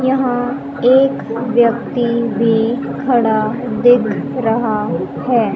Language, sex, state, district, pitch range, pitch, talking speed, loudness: Hindi, female, Haryana, Jhajjar, 230-255 Hz, 240 Hz, 85 wpm, -15 LUFS